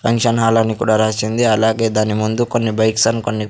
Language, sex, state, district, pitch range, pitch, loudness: Telugu, male, Andhra Pradesh, Sri Satya Sai, 110-115 Hz, 110 Hz, -16 LUFS